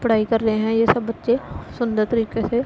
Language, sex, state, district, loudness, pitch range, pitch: Hindi, female, Punjab, Pathankot, -21 LUFS, 220-235 Hz, 225 Hz